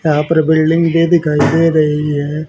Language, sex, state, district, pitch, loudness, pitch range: Hindi, male, Haryana, Rohtak, 155 Hz, -13 LUFS, 150-165 Hz